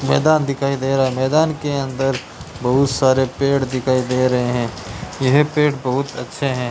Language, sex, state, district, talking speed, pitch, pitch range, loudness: Hindi, male, Rajasthan, Bikaner, 180 wpm, 135 Hz, 130-140 Hz, -18 LUFS